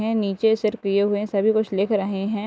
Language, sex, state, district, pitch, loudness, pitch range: Hindi, female, Bihar, Gopalganj, 210 Hz, -22 LUFS, 200-220 Hz